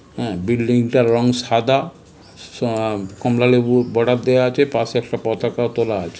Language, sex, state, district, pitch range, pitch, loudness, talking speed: Bengali, male, West Bengal, North 24 Parganas, 115-125 Hz, 120 Hz, -18 LUFS, 165 wpm